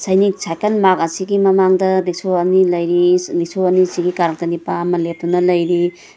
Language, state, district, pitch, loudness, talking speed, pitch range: Manipuri, Manipur, Imphal West, 180 Hz, -16 LUFS, 135 wpm, 175-190 Hz